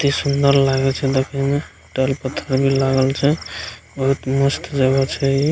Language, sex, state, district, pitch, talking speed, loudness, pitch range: Maithili, male, Bihar, Begusarai, 135 Hz, 165 wpm, -18 LUFS, 135-140 Hz